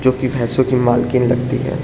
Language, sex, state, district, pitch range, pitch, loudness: Hindi, male, Arunachal Pradesh, Lower Dibang Valley, 125-130 Hz, 130 Hz, -16 LUFS